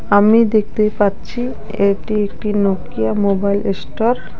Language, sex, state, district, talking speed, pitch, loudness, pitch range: Bengali, female, West Bengal, Alipurduar, 125 wpm, 205 Hz, -17 LUFS, 200-215 Hz